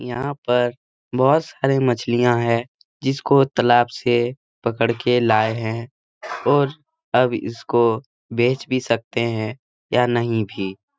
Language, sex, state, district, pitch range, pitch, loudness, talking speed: Hindi, male, Bihar, Jahanabad, 115-130 Hz, 120 Hz, -20 LUFS, 130 wpm